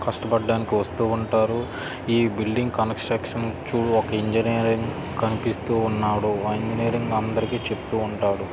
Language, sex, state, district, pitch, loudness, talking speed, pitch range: Telugu, male, Andhra Pradesh, Srikakulam, 115 Hz, -24 LUFS, 110 wpm, 110-115 Hz